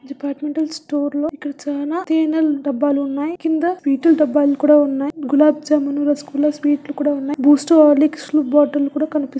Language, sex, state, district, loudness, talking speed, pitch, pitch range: Telugu, female, Andhra Pradesh, Chittoor, -17 LUFS, 170 wpm, 295 Hz, 285-305 Hz